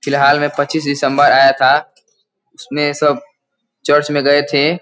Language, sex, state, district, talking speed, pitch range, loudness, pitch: Hindi, male, Uttar Pradesh, Gorakhpur, 150 wpm, 140-145 Hz, -14 LUFS, 145 Hz